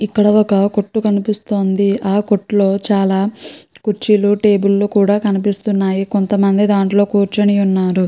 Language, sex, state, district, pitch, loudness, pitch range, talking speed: Telugu, female, Andhra Pradesh, Chittoor, 205 Hz, -15 LUFS, 195-210 Hz, 110 wpm